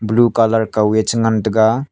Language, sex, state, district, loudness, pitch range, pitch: Wancho, male, Arunachal Pradesh, Longding, -15 LUFS, 110-115 Hz, 110 Hz